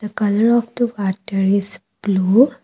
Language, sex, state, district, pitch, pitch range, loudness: English, female, Assam, Kamrup Metropolitan, 205 Hz, 195-235 Hz, -18 LUFS